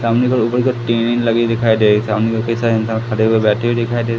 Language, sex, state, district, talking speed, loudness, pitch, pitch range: Hindi, male, Madhya Pradesh, Katni, 270 wpm, -15 LUFS, 115 Hz, 110-120 Hz